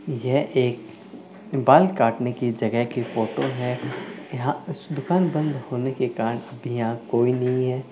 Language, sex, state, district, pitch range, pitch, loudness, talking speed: Hindi, male, Telangana, Karimnagar, 120-140 Hz, 125 Hz, -23 LUFS, 145 wpm